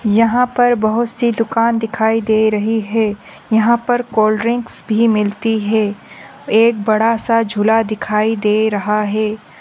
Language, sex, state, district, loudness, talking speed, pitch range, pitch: Hindi, female, Andhra Pradesh, Chittoor, -15 LUFS, 150 wpm, 215-230 Hz, 220 Hz